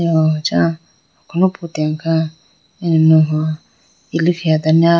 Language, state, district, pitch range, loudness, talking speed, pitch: Idu Mishmi, Arunachal Pradesh, Lower Dibang Valley, 155-170 Hz, -16 LUFS, 110 wpm, 160 Hz